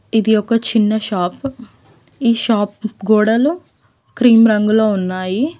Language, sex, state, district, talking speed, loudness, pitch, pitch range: Telugu, female, Telangana, Mahabubabad, 105 wpm, -15 LUFS, 220 Hz, 210-235 Hz